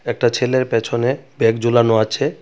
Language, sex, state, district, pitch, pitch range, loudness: Bengali, male, Tripura, West Tripura, 120 Hz, 115-125 Hz, -17 LUFS